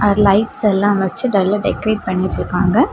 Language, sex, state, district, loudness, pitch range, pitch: Tamil, female, Tamil Nadu, Kanyakumari, -16 LUFS, 190-215 Hz, 205 Hz